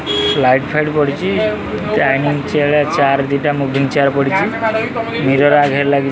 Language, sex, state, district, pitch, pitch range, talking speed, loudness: Odia, male, Odisha, Khordha, 145 Hz, 140-150 Hz, 145 wpm, -14 LUFS